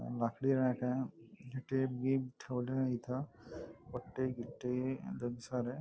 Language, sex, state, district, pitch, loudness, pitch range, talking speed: Marathi, male, Maharashtra, Nagpur, 125 Hz, -38 LUFS, 120-130 Hz, 85 wpm